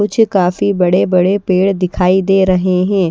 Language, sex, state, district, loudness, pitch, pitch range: Hindi, female, Haryana, Charkhi Dadri, -13 LUFS, 185 Hz, 180-200 Hz